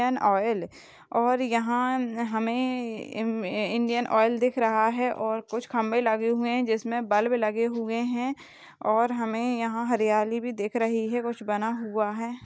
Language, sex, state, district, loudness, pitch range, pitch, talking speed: Hindi, female, Chhattisgarh, Bastar, -26 LUFS, 220-240 Hz, 230 Hz, 165 wpm